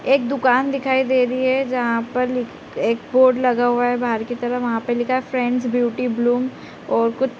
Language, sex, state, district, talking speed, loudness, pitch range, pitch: Hindi, female, Bihar, Gopalganj, 220 wpm, -20 LUFS, 240-255 Hz, 250 Hz